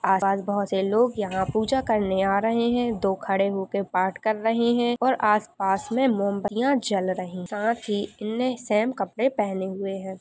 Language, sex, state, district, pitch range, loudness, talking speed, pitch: Hindi, female, Uttar Pradesh, Jalaun, 195-235 Hz, -24 LUFS, 190 wpm, 205 Hz